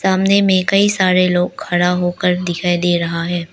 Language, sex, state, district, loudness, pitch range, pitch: Hindi, female, Arunachal Pradesh, Lower Dibang Valley, -15 LUFS, 175-190 Hz, 180 Hz